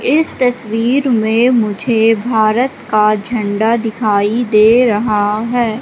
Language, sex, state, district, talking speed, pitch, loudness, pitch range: Hindi, female, Madhya Pradesh, Katni, 115 wpm, 225 Hz, -13 LUFS, 215-245 Hz